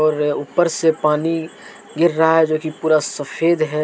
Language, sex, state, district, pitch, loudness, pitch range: Hindi, male, Jharkhand, Deoghar, 160 Hz, -18 LUFS, 155-165 Hz